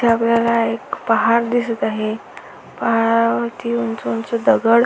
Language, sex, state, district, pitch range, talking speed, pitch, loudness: Marathi, female, Maharashtra, Aurangabad, 225-235 Hz, 135 wpm, 230 Hz, -18 LUFS